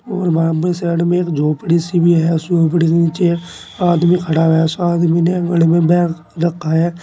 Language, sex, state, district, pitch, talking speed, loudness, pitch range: Hindi, male, Uttar Pradesh, Saharanpur, 170 Hz, 215 wpm, -15 LUFS, 165-175 Hz